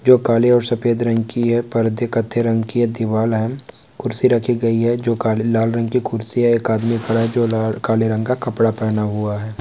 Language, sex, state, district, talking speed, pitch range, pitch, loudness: Hindi, male, Uttar Pradesh, Varanasi, 230 wpm, 110-120 Hz, 115 Hz, -18 LUFS